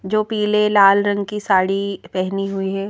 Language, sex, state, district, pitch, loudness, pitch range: Hindi, female, Madhya Pradesh, Bhopal, 195 Hz, -18 LUFS, 195-210 Hz